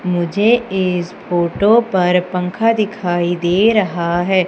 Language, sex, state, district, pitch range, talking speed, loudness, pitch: Hindi, female, Madhya Pradesh, Umaria, 175-210 Hz, 120 wpm, -16 LUFS, 180 Hz